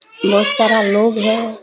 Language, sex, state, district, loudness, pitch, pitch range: Hindi, female, Bihar, Kishanganj, -14 LUFS, 220 Hz, 215-230 Hz